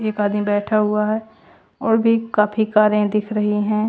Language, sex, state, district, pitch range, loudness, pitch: Hindi, female, Chandigarh, Chandigarh, 210-220 Hz, -19 LUFS, 215 Hz